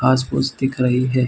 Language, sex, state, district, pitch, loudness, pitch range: Hindi, male, Chhattisgarh, Bilaspur, 130 Hz, -19 LUFS, 125-130 Hz